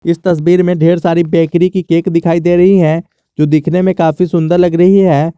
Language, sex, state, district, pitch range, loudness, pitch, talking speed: Hindi, male, Jharkhand, Garhwa, 165-180 Hz, -11 LUFS, 175 Hz, 225 wpm